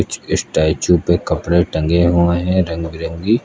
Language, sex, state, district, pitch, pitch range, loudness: Hindi, male, Uttar Pradesh, Lucknow, 85 Hz, 80-90 Hz, -16 LUFS